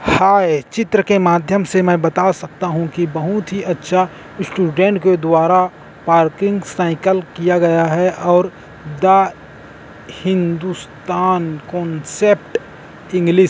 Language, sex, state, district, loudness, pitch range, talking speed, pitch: Hindi, male, Chhattisgarh, Korba, -16 LUFS, 165-190 Hz, 120 wpm, 180 Hz